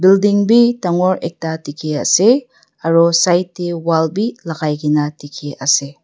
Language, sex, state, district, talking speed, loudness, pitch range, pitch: Nagamese, female, Nagaland, Dimapur, 140 wpm, -15 LUFS, 150-185 Hz, 170 Hz